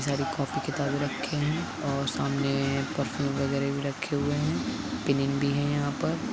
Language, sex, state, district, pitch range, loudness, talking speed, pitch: Hindi, male, Uttar Pradesh, Hamirpur, 140-145 Hz, -29 LUFS, 180 wpm, 140 Hz